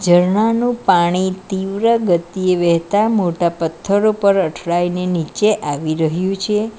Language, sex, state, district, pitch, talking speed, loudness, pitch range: Gujarati, female, Gujarat, Valsad, 185 Hz, 115 wpm, -17 LUFS, 170-210 Hz